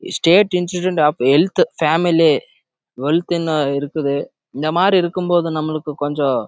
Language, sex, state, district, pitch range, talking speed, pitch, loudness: Tamil, male, Karnataka, Chamarajanagar, 145-175 Hz, 65 wpm, 160 Hz, -17 LUFS